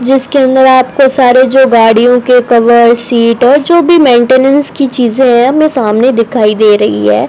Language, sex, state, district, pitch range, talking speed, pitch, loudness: Hindi, female, Rajasthan, Bikaner, 235-265 Hz, 180 wpm, 250 Hz, -7 LUFS